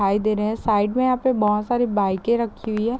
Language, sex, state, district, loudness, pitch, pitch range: Hindi, female, Chhattisgarh, Raigarh, -21 LUFS, 215 Hz, 210-240 Hz